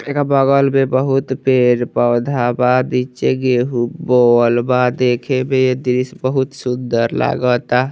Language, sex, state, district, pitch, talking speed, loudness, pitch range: Bajjika, male, Bihar, Vaishali, 125 Hz, 150 wpm, -15 LUFS, 125-135 Hz